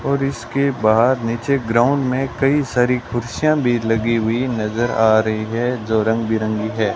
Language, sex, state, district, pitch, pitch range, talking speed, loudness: Hindi, male, Rajasthan, Bikaner, 120 Hz, 110-130 Hz, 170 wpm, -18 LUFS